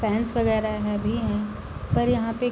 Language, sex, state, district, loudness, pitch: Hindi, female, Bihar, East Champaran, -25 LUFS, 215 Hz